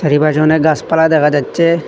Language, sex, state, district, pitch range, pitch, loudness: Bengali, male, Assam, Hailakandi, 150-160 Hz, 155 Hz, -12 LUFS